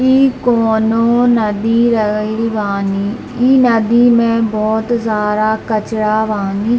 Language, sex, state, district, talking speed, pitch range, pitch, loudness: Hindi, female, Bihar, East Champaran, 105 wpm, 215-235 Hz, 225 Hz, -14 LUFS